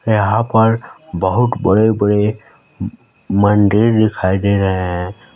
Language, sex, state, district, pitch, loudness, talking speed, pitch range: Hindi, male, Chhattisgarh, Balrampur, 105 Hz, -15 LUFS, 100 wpm, 100-110 Hz